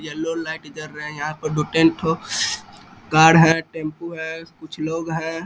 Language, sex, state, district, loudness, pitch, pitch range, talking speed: Hindi, male, Bihar, East Champaran, -20 LUFS, 160 Hz, 155-165 Hz, 185 wpm